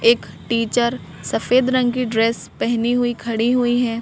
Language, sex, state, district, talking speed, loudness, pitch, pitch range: Hindi, female, Madhya Pradesh, Bhopal, 165 wpm, -19 LUFS, 240 Hz, 230-245 Hz